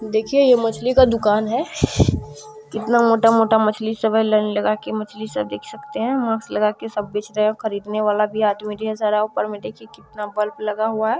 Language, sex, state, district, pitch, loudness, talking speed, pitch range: Maithili, female, Bihar, Supaul, 220 Hz, -19 LUFS, 200 wpm, 210-225 Hz